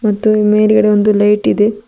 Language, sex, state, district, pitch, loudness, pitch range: Kannada, female, Karnataka, Bidar, 210 Hz, -11 LUFS, 210-215 Hz